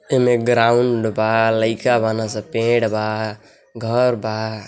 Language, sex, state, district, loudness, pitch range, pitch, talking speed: Bhojpuri, male, Uttar Pradesh, Deoria, -18 LUFS, 110-120 Hz, 115 Hz, 130 wpm